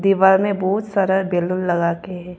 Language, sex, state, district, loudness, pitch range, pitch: Hindi, female, Arunachal Pradesh, Papum Pare, -18 LUFS, 180-195 Hz, 190 Hz